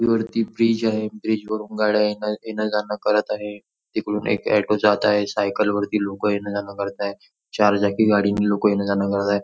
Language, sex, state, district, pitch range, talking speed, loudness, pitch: Marathi, male, Maharashtra, Nagpur, 100-110 Hz, 180 wpm, -21 LUFS, 105 Hz